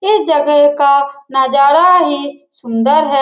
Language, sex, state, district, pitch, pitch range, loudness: Hindi, female, Bihar, Lakhisarai, 285 Hz, 280-305 Hz, -11 LUFS